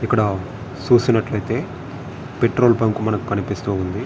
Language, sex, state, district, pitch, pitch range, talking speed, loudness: Telugu, male, Andhra Pradesh, Visakhapatnam, 110 Hz, 100-120 Hz, 90 wpm, -19 LUFS